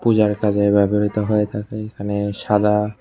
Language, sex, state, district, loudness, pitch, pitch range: Bengali, male, Tripura, West Tripura, -19 LUFS, 105 Hz, 100-105 Hz